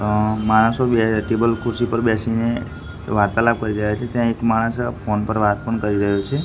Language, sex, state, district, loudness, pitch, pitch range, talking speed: Gujarati, male, Gujarat, Gandhinagar, -19 LUFS, 110 Hz, 105-115 Hz, 195 wpm